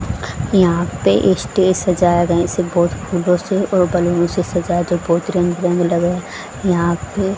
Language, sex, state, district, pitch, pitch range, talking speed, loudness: Hindi, female, Haryana, Rohtak, 175 Hz, 170-180 Hz, 185 wpm, -17 LUFS